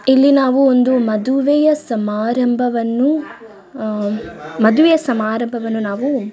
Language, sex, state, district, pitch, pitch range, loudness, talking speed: Kannada, female, Karnataka, Dakshina Kannada, 245 Hz, 220-270 Hz, -16 LUFS, 75 wpm